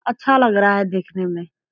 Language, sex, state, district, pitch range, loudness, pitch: Hindi, female, Bihar, Purnia, 185-245 Hz, -18 LUFS, 200 Hz